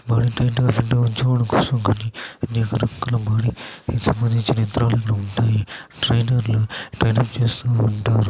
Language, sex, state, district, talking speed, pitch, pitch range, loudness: Telugu, male, Andhra Pradesh, Chittoor, 60 wpm, 115 Hz, 110-120 Hz, -20 LUFS